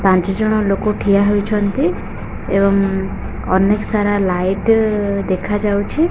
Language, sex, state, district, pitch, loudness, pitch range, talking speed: Odia, female, Odisha, Khordha, 200 Hz, -16 LUFS, 195-210 Hz, 110 wpm